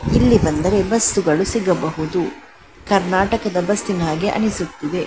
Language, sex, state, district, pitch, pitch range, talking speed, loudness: Kannada, female, Karnataka, Dakshina Kannada, 195 Hz, 175-210 Hz, 105 wpm, -18 LUFS